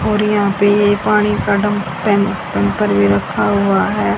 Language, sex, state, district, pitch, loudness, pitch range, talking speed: Hindi, female, Haryana, Jhajjar, 200 Hz, -15 LUFS, 170-205 Hz, 185 wpm